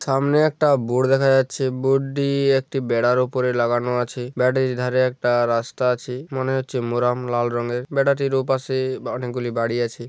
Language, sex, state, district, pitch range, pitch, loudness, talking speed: Bengali, male, West Bengal, Paschim Medinipur, 120-135 Hz, 125 Hz, -21 LUFS, 165 wpm